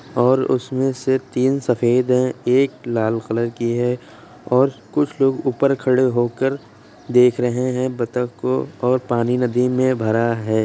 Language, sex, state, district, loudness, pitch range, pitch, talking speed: Hindi, male, Uttar Pradesh, Jyotiba Phule Nagar, -19 LUFS, 120-130 Hz, 125 Hz, 170 wpm